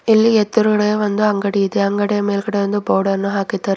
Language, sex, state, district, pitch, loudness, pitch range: Kannada, female, Karnataka, Bidar, 205 Hz, -17 LUFS, 200-210 Hz